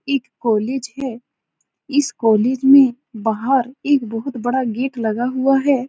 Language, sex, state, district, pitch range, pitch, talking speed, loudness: Hindi, female, Uttar Pradesh, Etah, 235-275 Hz, 255 Hz, 145 wpm, -18 LUFS